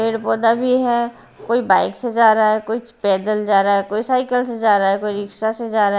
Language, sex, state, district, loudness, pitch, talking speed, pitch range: Hindi, female, Bihar, Katihar, -18 LUFS, 220 Hz, 260 wpm, 205-235 Hz